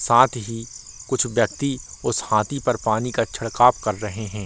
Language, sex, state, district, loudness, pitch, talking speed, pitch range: Hindi, male, Bihar, Samastipur, -22 LUFS, 115 Hz, 175 wpm, 110-125 Hz